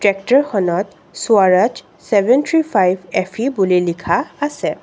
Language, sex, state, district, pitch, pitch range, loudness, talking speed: Assamese, female, Assam, Kamrup Metropolitan, 200 Hz, 185-265 Hz, -16 LUFS, 110 wpm